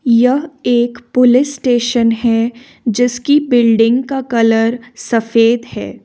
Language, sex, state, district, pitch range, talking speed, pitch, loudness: Hindi, female, Jharkhand, Ranchi, 230-250 Hz, 110 wpm, 240 Hz, -13 LUFS